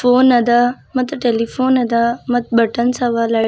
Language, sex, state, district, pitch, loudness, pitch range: Kannada, female, Karnataka, Bidar, 245 Hz, -16 LUFS, 235-250 Hz